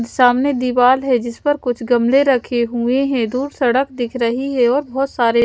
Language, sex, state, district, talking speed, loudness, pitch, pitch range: Hindi, female, Punjab, Pathankot, 200 wpm, -17 LUFS, 250 Hz, 240-270 Hz